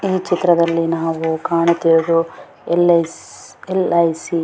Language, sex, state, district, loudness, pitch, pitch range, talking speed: Kannada, female, Karnataka, Mysore, -16 LUFS, 170 Hz, 165-175 Hz, 95 wpm